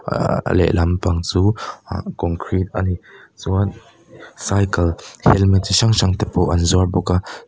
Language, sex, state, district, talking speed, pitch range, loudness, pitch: Mizo, male, Mizoram, Aizawl, 160 wpm, 85-100 Hz, -18 LUFS, 90 Hz